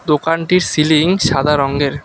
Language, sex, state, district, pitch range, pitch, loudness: Bengali, male, West Bengal, Alipurduar, 145-165 Hz, 155 Hz, -14 LUFS